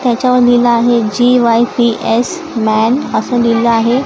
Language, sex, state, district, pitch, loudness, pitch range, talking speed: Marathi, female, Maharashtra, Gondia, 240 Hz, -12 LUFS, 230-245 Hz, 160 wpm